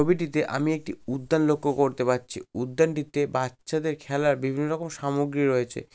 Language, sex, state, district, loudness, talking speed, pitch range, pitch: Bengali, male, West Bengal, Malda, -26 LUFS, 140 wpm, 130-155 Hz, 145 Hz